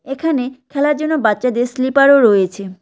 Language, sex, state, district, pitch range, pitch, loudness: Bengali, female, West Bengal, Cooch Behar, 220-280 Hz, 260 Hz, -15 LUFS